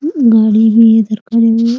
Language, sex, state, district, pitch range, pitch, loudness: Hindi, female, Bihar, Muzaffarpur, 220-230 Hz, 225 Hz, -10 LUFS